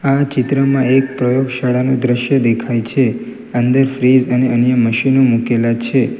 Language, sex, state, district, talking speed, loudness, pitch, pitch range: Gujarati, male, Gujarat, Valsad, 135 wpm, -14 LUFS, 125 Hz, 120-135 Hz